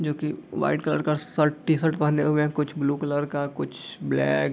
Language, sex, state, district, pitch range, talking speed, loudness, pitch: Hindi, male, Bihar, East Champaran, 145-150 Hz, 225 wpm, -25 LUFS, 150 Hz